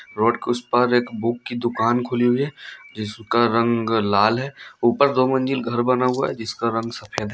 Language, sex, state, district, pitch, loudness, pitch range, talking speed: Hindi, male, Bihar, Darbhanga, 120 Hz, -21 LUFS, 115-125 Hz, 215 wpm